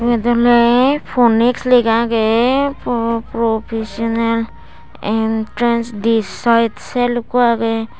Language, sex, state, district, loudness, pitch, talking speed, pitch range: Chakma, female, Tripura, West Tripura, -15 LUFS, 230 Hz, 90 wpm, 225-240 Hz